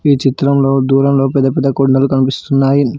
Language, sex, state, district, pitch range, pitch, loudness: Telugu, male, Telangana, Hyderabad, 135-140 Hz, 135 Hz, -12 LUFS